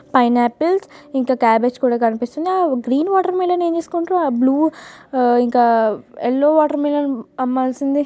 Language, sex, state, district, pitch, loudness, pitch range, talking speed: Telugu, female, Telangana, Nalgonda, 270 Hz, -17 LUFS, 245-330 Hz, 150 wpm